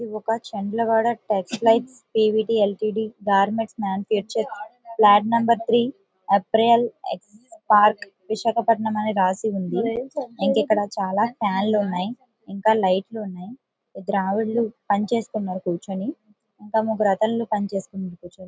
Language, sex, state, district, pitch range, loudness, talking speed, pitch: Telugu, female, Andhra Pradesh, Visakhapatnam, 200-230 Hz, -22 LUFS, 115 wpm, 215 Hz